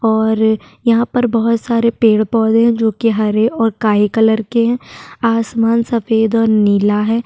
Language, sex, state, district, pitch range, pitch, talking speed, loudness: Hindi, female, Maharashtra, Chandrapur, 220-230 Hz, 225 Hz, 175 wpm, -14 LUFS